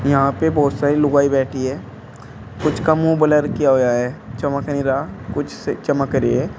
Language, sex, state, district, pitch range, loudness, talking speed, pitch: Hindi, male, Uttar Pradesh, Shamli, 125-145 Hz, -18 LUFS, 200 wpm, 140 Hz